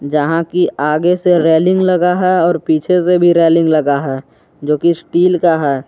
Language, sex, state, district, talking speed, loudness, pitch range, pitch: Hindi, male, Jharkhand, Garhwa, 185 wpm, -13 LUFS, 150-180 Hz, 165 Hz